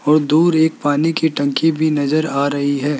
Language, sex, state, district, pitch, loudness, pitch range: Hindi, male, Rajasthan, Jaipur, 150 Hz, -16 LUFS, 140-160 Hz